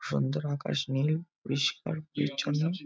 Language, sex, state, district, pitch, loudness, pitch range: Bengali, male, West Bengal, Jhargram, 145 Hz, -31 LUFS, 140-155 Hz